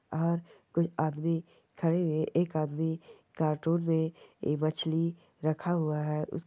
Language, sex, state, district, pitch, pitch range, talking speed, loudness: Hindi, female, Rajasthan, Nagaur, 160 Hz, 155-170 Hz, 150 wpm, -31 LUFS